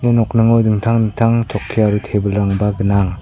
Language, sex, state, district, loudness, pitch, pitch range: Garo, male, Meghalaya, South Garo Hills, -15 LUFS, 105 Hz, 100-115 Hz